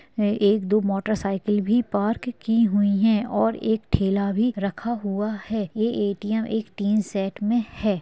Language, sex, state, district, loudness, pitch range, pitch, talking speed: Hindi, female, West Bengal, Dakshin Dinajpur, -23 LUFS, 200-225 Hz, 210 Hz, 165 wpm